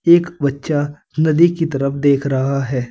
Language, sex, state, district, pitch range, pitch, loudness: Hindi, male, Uttar Pradesh, Saharanpur, 135-160 Hz, 145 Hz, -17 LUFS